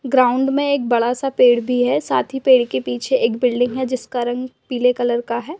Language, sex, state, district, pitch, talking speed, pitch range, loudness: Hindi, female, Uttar Pradesh, Budaun, 250 Hz, 235 wpm, 240-260 Hz, -18 LUFS